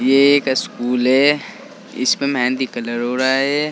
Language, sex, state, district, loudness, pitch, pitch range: Hindi, male, Uttar Pradesh, Saharanpur, -17 LUFS, 130 Hz, 125-140 Hz